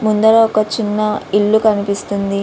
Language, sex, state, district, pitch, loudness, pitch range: Telugu, female, Andhra Pradesh, Visakhapatnam, 215 Hz, -15 LUFS, 205-220 Hz